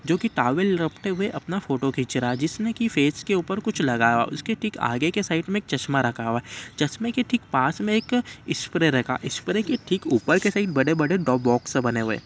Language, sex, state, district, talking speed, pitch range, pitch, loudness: Hindi, male, Uttar Pradesh, Ghazipur, 235 wpm, 130-205 Hz, 160 Hz, -24 LUFS